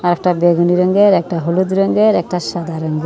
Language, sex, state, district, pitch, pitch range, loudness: Bengali, female, Tripura, Unakoti, 175 Hz, 170-190 Hz, -14 LUFS